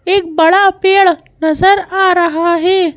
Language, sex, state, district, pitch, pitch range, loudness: Hindi, female, Madhya Pradesh, Bhopal, 365 Hz, 340-385 Hz, -11 LUFS